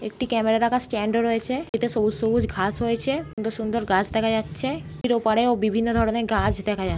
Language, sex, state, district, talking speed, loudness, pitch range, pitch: Bengali, female, West Bengal, Jhargram, 190 wpm, -23 LUFS, 220-235 Hz, 225 Hz